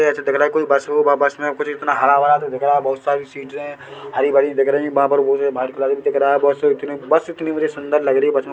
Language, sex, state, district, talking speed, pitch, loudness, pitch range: Hindi, male, Chhattisgarh, Bilaspur, 275 wpm, 145 Hz, -17 LUFS, 140-150 Hz